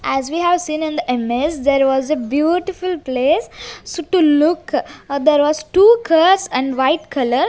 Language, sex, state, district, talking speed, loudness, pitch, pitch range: English, female, Punjab, Kapurthala, 185 wpm, -16 LUFS, 305 Hz, 270-345 Hz